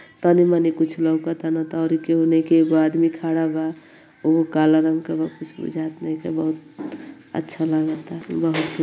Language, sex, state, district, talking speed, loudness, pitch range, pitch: Bhojpuri, female, Uttar Pradesh, Ghazipur, 175 wpm, -21 LUFS, 160-165 Hz, 160 Hz